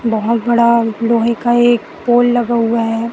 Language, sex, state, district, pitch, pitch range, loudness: Hindi, female, Chhattisgarh, Raipur, 235 Hz, 230-240 Hz, -14 LUFS